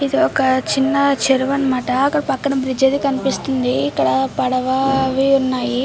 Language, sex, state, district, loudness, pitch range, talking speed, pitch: Telugu, female, Andhra Pradesh, Srikakulam, -17 LUFS, 255-275 Hz, 115 wpm, 265 Hz